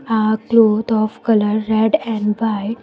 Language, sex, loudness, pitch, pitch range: English, female, -16 LUFS, 220 Hz, 215-225 Hz